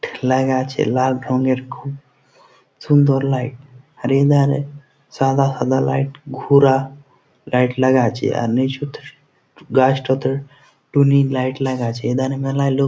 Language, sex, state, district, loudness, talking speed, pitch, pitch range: Bengali, male, West Bengal, Jhargram, -18 LUFS, 125 wpm, 135 Hz, 130-140 Hz